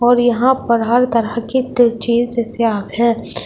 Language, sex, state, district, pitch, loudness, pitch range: Hindi, female, Delhi, New Delhi, 235 Hz, -15 LUFS, 230-245 Hz